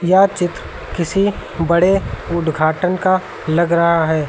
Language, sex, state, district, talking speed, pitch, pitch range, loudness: Hindi, male, Uttar Pradesh, Lucknow, 125 wpm, 170 Hz, 165-185 Hz, -17 LUFS